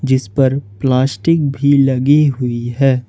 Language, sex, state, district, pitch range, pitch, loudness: Hindi, male, Jharkhand, Ranchi, 125-140 Hz, 135 Hz, -14 LUFS